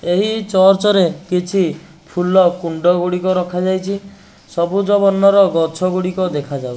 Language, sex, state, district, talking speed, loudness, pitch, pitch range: Odia, male, Odisha, Nuapada, 140 wpm, -15 LUFS, 185 Hz, 175-195 Hz